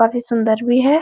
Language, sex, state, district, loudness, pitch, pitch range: Hindi, female, Bihar, Araria, -16 LUFS, 240 Hz, 230-250 Hz